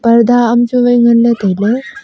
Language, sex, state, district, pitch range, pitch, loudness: Wancho, female, Arunachal Pradesh, Longding, 235-245 Hz, 235 Hz, -10 LUFS